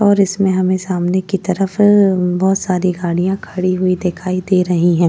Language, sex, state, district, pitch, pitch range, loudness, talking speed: Hindi, female, Uttar Pradesh, Jyotiba Phule Nagar, 185 Hz, 180-195 Hz, -15 LUFS, 175 wpm